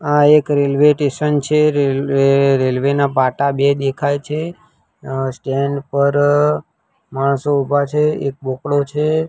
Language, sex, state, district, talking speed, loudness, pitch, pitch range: Gujarati, male, Gujarat, Gandhinagar, 130 wpm, -16 LUFS, 140 Hz, 140-150 Hz